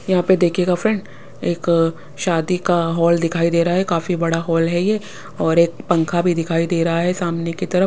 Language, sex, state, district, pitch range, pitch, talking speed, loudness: Hindi, female, Punjab, Pathankot, 165-180 Hz, 170 Hz, 215 wpm, -18 LUFS